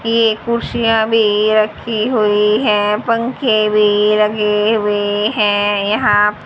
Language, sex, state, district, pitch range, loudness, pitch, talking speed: Hindi, female, Haryana, Charkhi Dadri, 210-225 Hz, -14 LUFS, 215 Hz, 110 wpm